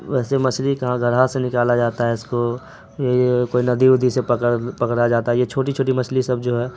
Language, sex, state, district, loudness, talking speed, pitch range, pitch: Hindi, male, Bihar, Araria, -19 LUFS, 205 wpm, 120-130 Hz, 125 Hz